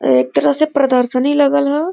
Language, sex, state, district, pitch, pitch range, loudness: Bhojpuri, female, Uttar Pradesh, Varanasi, 275 Hz, 195-290 Hz, -14 LUFS